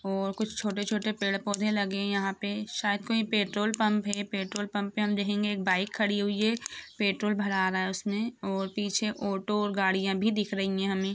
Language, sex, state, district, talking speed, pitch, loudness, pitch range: Hindi, female, Jharkhand, Jamtara, 205 wpm, 205 Hz, -29 LUFS, 195-210 Hz